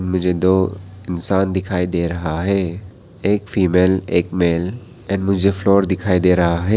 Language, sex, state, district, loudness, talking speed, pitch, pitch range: Hindi, male, Arunachal Pradesh, Papum Pare, -18 LUFS, 160 wpm, 95 Hz, 90-100 Hz